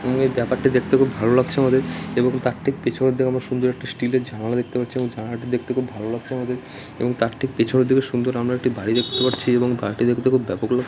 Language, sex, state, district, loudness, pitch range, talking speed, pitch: Bengali, male, West Bengal, Dakshin Dinajpur, -21 LUFS, 120-130 Hz, 250 wpm, 125 Hz